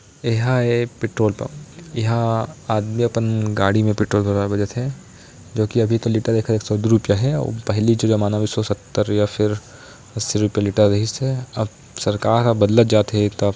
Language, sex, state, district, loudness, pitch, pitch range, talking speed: Chhattisgarhi, male, Chhattisgarh, Korba, -19 LUFS, 110 Hz, 105-120 Hz, 190 wpm